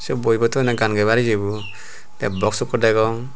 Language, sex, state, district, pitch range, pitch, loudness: Chakma, male, Tripura, Unakoti, 105-120 Hz, 115 Hz, -19 LUFS